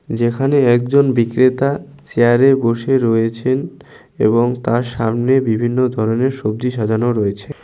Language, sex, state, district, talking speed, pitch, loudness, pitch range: Bengali, male, West Bengal, Cooch Behar, 110 wpm, 120 Hz, -16 LUFS, 115-135 Hz